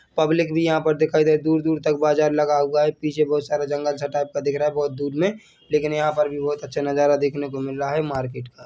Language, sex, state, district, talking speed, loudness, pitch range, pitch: Hindi, male, Chhattisgarh, Bilaspur, 270 wpm, -22 LUFS, 145-155 Hz, 150 Hz